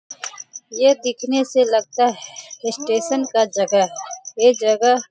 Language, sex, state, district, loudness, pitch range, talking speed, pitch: Hindi, female, Bihar, Sitamarhi, -18 LUFS, 225-265 Hz, 140 wpm, 245 Hz